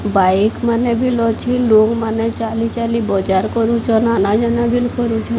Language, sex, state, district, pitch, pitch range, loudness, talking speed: Odia, female, Odisha, Sambalpur, 230 Hz, 220-235 Hz, -16 LUFS, 120 wpm